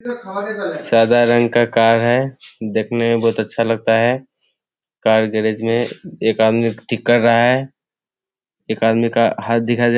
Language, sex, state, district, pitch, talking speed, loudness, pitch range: Hindi, male, Bihar, Kishanganj, 115 Hz, 155 wpm, -16 LUFS, 115-120 Hz